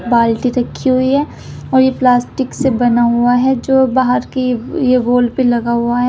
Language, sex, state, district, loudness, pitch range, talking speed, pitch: Hindi, female, Uttar Pradesh, Shamli, -14 LUFS, 240-260 Hz, 195 wpm, 250 Hz